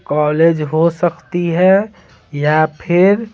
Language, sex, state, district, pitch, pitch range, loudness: Hindi, male, Bihar, Patna, 170 Hz, 155-185 Hz, -14 LUFS